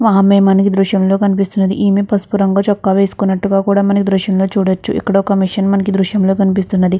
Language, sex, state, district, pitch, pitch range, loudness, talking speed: Telugu, female, Andhra Pradesh, Chittoor, 195 Hz, 195-200 Hz, -13 LUFS, 215 wpm